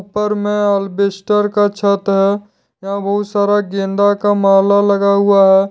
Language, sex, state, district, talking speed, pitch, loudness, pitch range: Hindi, male, Jharkhand, Deoghar, 155 wpm, 200 Hz, -14 LUFS, 195-205 Hz